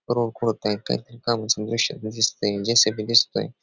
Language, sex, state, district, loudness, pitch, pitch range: Marathi, male, Maharashtra, Pune, -22 LUFS, 110 Hz, 105-115 Hz